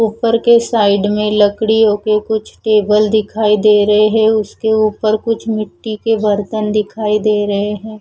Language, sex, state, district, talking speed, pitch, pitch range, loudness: Hindi, female, Odisha, Khordha, 165 wpm, 215 Hz, 210-220 Hz, -14 LUFS